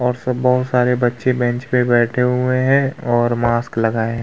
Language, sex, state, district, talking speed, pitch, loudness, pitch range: Hindi, male, Uttar Pradesh, Budaun, 200 wpm, 125 Hz, -17 LUFS, 120-125 Hz